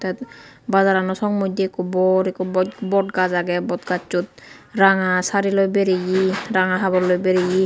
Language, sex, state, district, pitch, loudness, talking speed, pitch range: Chakma, female, Tripura, Unakoti, 185 Hz, -19 LUFS, 150 wpm, 185-195 Hz